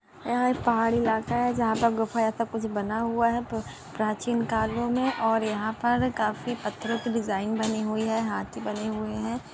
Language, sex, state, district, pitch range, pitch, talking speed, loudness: Hindi, female, Maharashtra, Solapur, 220-235 Hz, 225 Hz, 180 wpm, -27 LUFS